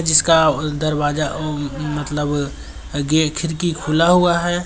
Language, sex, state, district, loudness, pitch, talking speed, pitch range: Hindi, male, Bihar, Gopalganj, -18 LUFS, 155 Hz, 130 wpm, 150-165 Hz